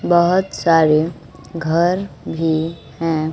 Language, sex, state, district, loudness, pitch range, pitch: Hindi, female, Bihar, West Champaran, -18 LUFS, 155-170 Hz, 165 Hz